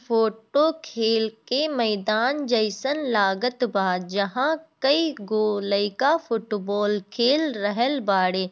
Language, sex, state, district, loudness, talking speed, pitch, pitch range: Bhojpuri, female, Bihar, Gopalganj, -23 LUFS, 105 wpm, 225 Hz, 205-275 Hz